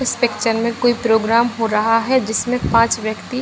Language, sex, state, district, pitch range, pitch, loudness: Hindi, female, Bihar, Kishanganj, 225-245 Hz, 230 Hz, -17 LUFS